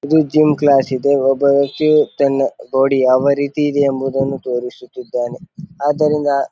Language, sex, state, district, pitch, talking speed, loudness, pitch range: Kannada, male, Karnataka, Bijapur, 140 Hz, 140 wpm, -16 LUFS, 135-150 Hz